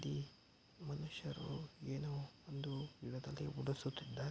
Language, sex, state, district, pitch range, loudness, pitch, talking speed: Kannada, male, Karnataka, Mysore, 135-150 Hz, -47 LUFS, 145 Hz, 85 wpm